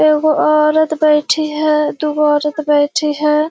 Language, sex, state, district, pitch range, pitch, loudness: Hindi, female, Bihar, Kishanganj, 300-310 Hz, 305 Hz, -14 LUFS